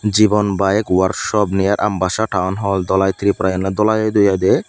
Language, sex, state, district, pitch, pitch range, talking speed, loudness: Chakma, male, Tripura, Dhalai, 100 Hz, 95-105 Hz, 205 wpm, -16 LUFS